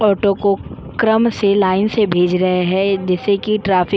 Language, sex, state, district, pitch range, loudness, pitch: Hindi, female, Goa, North and South Goa, 185-210 Hz, -16 LUFS, 200 Hz